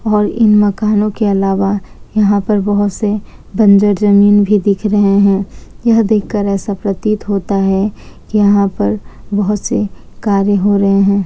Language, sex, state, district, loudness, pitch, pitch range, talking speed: Hindi, female, Bihar, Kishanganj, -13 LUFS, 205 Hz, 200-210 Hz, 160 wpm